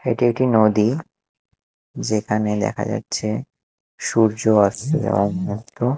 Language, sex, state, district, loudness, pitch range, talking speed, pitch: Bengali, male, Odisha, Nuapada, -20 LUFS, 105-120 Hz, 100 wpm, 110 Hz